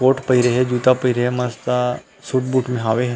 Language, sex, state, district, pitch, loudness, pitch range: Chhattisgarhi, male, Chhattisgarh, Rajnandgaon, 125 Hz, -19 LUFS, 125-130 Hz